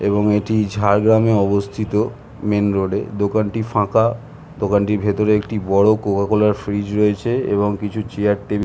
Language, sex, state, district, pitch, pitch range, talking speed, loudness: Bengali, male, West Bengal, Jhargram, 105 Hz, 100-110 Hz, 145 wpm, -18 LUFS